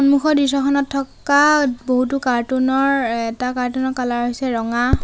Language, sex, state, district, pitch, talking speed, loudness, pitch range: Assamese, female, Assam, Sonitpur, 260 Hz, 155 wpm, -18 LUFS, 245-275 Hz